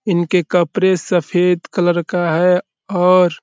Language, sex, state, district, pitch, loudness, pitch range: Hindi, male, Uttar Pradesh, Deoria, 180 Hz, -16 LUFS, 175-185 Hz